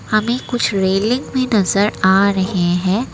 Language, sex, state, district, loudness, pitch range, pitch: Hindi, female, Assam, Kamrup Metropolitan, -16 LUFS, 190-235 Hz, 200 Hz